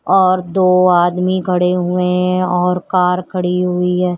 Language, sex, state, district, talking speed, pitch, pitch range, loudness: Hindi, female, Uttar Pradesh, Shamli, 155 wpm, 180 Hz, 180-185 Hz, -15 LUFS